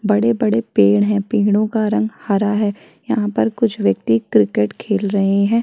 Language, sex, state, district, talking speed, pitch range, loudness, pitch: Hindi, female, Chhattisgarh, Kabirdham, 170 wpm, 200-220 Hz, -17 LUFS, 205 Hz